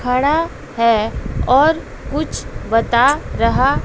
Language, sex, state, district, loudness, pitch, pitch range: Hindi, female, Bihar, West Champaran, -17 LUFS, 250 Hz, 230-290 Hz